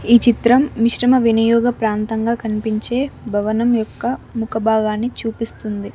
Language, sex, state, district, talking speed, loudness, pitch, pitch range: Telugu, female, Telangana, Mahabubabad, 110 wpm, -18 LUFS, 230 Hz, 220-240 Hz